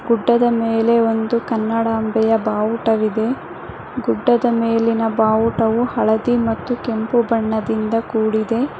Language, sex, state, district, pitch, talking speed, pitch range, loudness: Kannada, female, Karnataka, Bangalore, 225 Hz, 90 wpm, 220-235 Hz, -18 LUFS